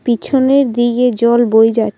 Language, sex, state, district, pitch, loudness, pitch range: Bengali, female, Assam, Kamrup Metropolitan, 240 Hz, -12 LUFS, 230-250 Hz